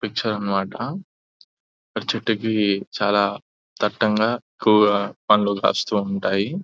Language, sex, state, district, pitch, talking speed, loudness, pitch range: Telugu, male, Telangana, Nalgonda, 105 Hz, 90 wpm, -21 LUFS, 100-110 Hz